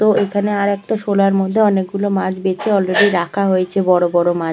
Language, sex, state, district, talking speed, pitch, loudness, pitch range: Bengali, female, West Bengal, Purulia, 200 wpm, 195 Hz, -16 LUFS, 185-205 Hz